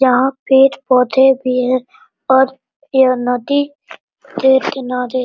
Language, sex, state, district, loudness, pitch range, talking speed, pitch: Hindi, female, Bihar, Araria, -14 LUFS, 255-270 Hz, 115 wpm, 265 Hz